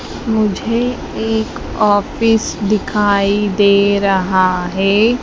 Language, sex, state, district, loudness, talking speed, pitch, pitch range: Hindi, female, Madhya Pradesh, Dhar, -15 LUFS, 160 wpm, 205 Hz, 200-220 Hz